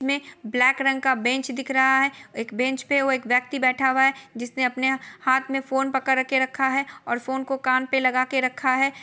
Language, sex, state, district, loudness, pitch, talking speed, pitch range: Hindi, female, Chhattisgarh, Korba, -22 LUFS, 265 Hz, 225 wpm, 255-270 Hz